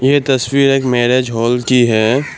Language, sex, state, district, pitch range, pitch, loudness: Hindi, male, Assam, Kamrup Metropolitan, 120-135 Hz, 125 Hz, -13 LUFS